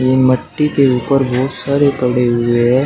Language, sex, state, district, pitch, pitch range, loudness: Hindi, male, Uttar Pradesh, Shamli, 130 Hz, 125-140 Hz, -14 LUFS